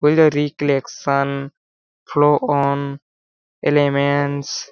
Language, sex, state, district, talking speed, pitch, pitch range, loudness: Hindi, male, Chhattisgarh, Balrampur, 50 wpm, 140 Hz, 140-145 Hz, -18 LUFS